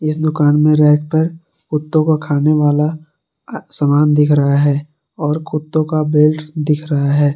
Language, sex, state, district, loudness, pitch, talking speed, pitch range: Hindi, male, Jharkhand, Garhwa, -15 LUFS, 150 Hz, 165 wpm, 150-155 Hz